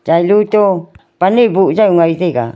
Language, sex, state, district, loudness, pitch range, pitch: Wancho, female, Arunachal Pradesh, Longding, -12 LUFS, 165-205 Hz, 185 Hz